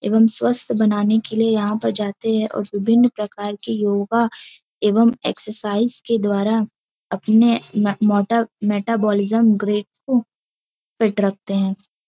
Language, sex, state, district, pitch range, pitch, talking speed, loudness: Hindi, female, Uttar Pradesh, Varanasi, 205-225 Hz, 215 Hz, 140 wpm, -19 LUFS